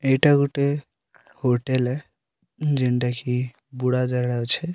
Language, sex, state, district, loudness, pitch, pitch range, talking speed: Odia, male, Odisha, Sambalpur, -23 LUFS, 130 Hz, 125-140 Hz, 90 wpm